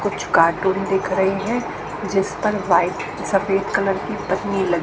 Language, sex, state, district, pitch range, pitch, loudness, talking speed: Hindi, female, Haryana, Jhajjar, 190-195 Hz, 195 Hz, -20 LUFS, 150 wpm